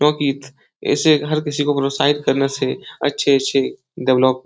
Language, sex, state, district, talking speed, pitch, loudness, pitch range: Hindi, male, Uttar Pradesh, Etah, 135 wpm, 140 Hz, -18 LUFS, 135-145 Hz